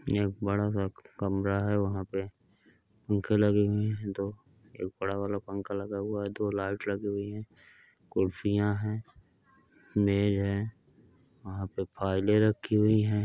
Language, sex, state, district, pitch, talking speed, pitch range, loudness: Hindi, male, Uttar Pradesh, Hamirpur, 100 Hz, 135 wpm, 100-105 Hz, -30 LUFS